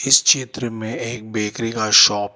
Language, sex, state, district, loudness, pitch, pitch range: Hindi, male, Telangana, Hyderabad, -17 LUFS, 115 Hz, 105-120 Hz